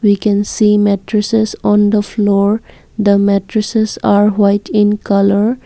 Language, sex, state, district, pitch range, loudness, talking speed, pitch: English, female, Assam, Kamrup Metropolitan, 200-215 Hz, -13 LUFS, 140 wpm, 205 Hz